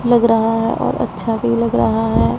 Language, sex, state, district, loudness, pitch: Hindi, female, Punjab, Pathankot, -16 LUFS, 195 Hz